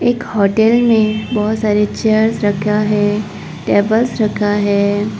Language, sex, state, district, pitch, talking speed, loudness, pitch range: Hindi, female, Arunachal Pradesh, Papum Pare, 210 Hz, 125 wpm, -14 LUFS, 205-220 Hz